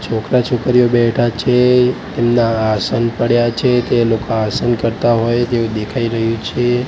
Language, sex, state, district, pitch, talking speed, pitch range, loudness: Gujarati, male, Gujarat, Gandhinagar, 120 Hz, 150 wpm, 115-125 Hz, -15 LUFS